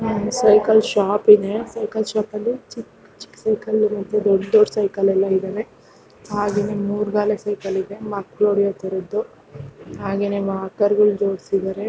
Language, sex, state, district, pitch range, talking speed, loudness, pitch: Kannada, female, Karnataka, Shimoga, 200-215 Hz, 125 wpm, -20 LUFS, 205 Hz